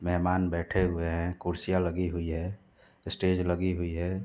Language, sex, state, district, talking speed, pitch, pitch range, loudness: Hindi, male, Uttar Pradesh, Hamirpur, 185 wpm, 90 Hz, 85-90 Hz, -30 LUFS